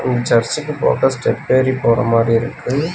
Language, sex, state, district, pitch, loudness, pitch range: Tamil, male, Tamil Nadu, Nilgiris, 120 Hz, -16 LUFS, 115-130 Hz